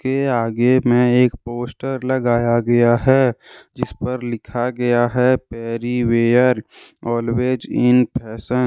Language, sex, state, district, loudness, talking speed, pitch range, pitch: Hindi, male, Jharkhand, Deoghar, -18 LUFS, 120 wpm, 120-125 Hz, 120 Hz